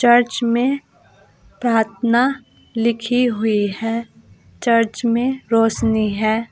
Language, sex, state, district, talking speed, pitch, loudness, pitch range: Hindi, female, Uttar Pradesh, Saharanpur, 90 wpm, 230 Hz, -18 LUFS, 225-245 Hz